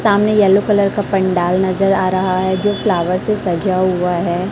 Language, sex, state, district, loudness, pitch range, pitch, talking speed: Hindi, female, Chhattisgarh, Raipur, -15 LUFS, 185-205 Hz, 190 Hz, 200 wpm